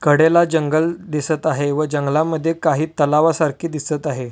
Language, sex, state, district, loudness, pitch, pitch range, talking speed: Marathi, male, Maharashtra, Solapur, -18 LUFS, 155 Hz, 150-160 Hz, 155 wpm